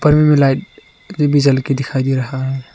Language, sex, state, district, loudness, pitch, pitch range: Hindi, male, Arunachal Pradesh, Lower Dibang Valley, -15 LUFS, 135 Hz, 130-145 Hz